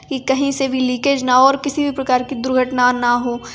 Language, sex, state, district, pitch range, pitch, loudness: Hindi, female, Uttar Pradesh, Varanasi, 250-275 Hz, 260 Hz, -17 LUFS